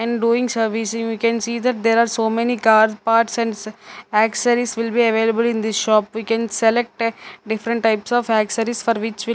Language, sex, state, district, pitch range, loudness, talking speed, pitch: English, female, Punjab, Fazilka, 220-235 Hz, -19 LUFS, 220 wpm, 230 Hz